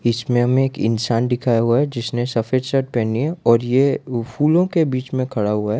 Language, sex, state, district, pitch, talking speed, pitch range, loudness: Hindi, male, Gujarat, Valsad, 125 Hz, 220 wpm, 115-135 Hz, -19 LUFS